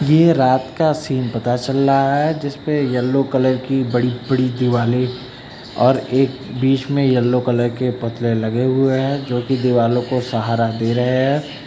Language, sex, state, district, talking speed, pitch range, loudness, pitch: Hindi, male, Uttar Pradesh, Lucknow, 175 wpm, 120-135 Hz, -18 LUFS, 130 Hz